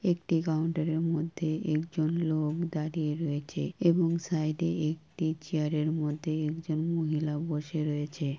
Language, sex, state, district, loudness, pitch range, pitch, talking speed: Bengali, female, West Bengal, Kolkata, -31 LUFS, 155-165 Hz, 160 Hz, 135 wpm